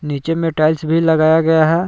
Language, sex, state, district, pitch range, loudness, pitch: Hindi, male, Jharkhand, Palamu, 155-165 Hz, -15 LUFS, 160 Hz